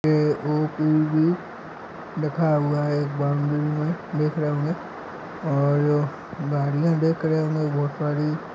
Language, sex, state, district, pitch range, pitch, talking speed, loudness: Hindi, male, Bihar, Madhepura, 145-155 Hz, 150 Hz, 120 wpm, -23 LUFS